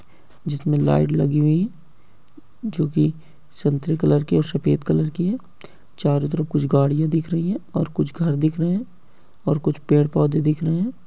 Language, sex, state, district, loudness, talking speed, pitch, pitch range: Hindi, male, Uttar Pradesh, Hamirpur, -21 LUFS, 190 wpm, 155 Hz, 145-165 Hz